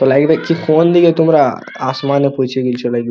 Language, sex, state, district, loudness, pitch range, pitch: Bengali, male, West Bengal, Purulia, -13 LUFS, 130-160 Hz, 140 Hz